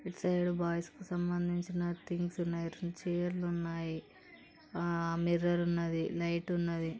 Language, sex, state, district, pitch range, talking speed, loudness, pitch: Telugu, female, Telangana, Karimnagar, 170-175 Hz, 155 wpm, -35 LUFS, 175 Hz